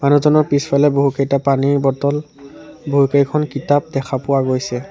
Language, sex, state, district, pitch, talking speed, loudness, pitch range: Assamese, male, Assam, Sonitpur, 140 Hz, 120 wpm, -16 LUFS, 140-145 Hz